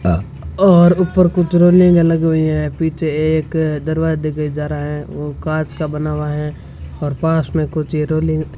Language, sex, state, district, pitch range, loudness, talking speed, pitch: Hindi, female, Rajasthan, Bikaner, 150-160 Hz, -16 LUFS, 190 wpm, 155 Hz